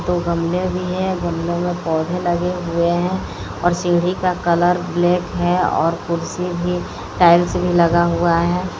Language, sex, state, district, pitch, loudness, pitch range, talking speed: Hindi, female, Odisha, Sambalpur, 175 Hz, -18 LUFS, 170-180 Hz, 165 wpm